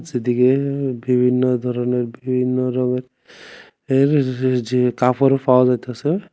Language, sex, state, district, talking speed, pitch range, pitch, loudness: Bengali, male, Tripura, West Tripura, 95 wpm, 125-130 Hz, 125 Hz, -18 LUFS